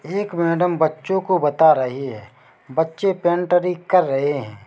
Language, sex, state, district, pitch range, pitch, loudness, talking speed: Hindi, male, Chhattisgarh, Bilaspur, 135-180 Hz, 160 Hz, -19 LUFS, 155 wpm